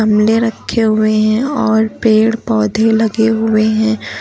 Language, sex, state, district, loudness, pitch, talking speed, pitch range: Hindi, female, Uttar Pradesh, Lucknow, -13 LUFS, 220 Hz, 140 wpm, 215-225 Hz